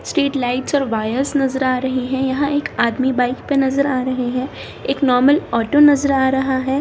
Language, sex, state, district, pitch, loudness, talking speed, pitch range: Hindi, female, Bihar, Samastipur, 265 Hz, -17 LUFS, 210 wpm, 255-280 Hz